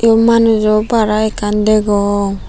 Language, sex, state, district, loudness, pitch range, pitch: Chakma, female, Tripura, Unakoti, -13 LUFS, 205-225 Hz, 215 Hz